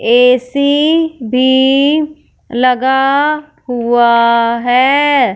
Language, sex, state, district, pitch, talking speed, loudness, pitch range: Hindi, female, Punjab, Fazilka, 260 Hz, 55 wpm, -11 LUFS, 245-290 Hz